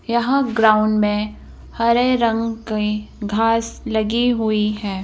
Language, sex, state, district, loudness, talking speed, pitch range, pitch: Hindi, female, Madhya Pradesh, Bhopal, -19 LUFS, 105 wpm, 210-235 Hz, 225 Hz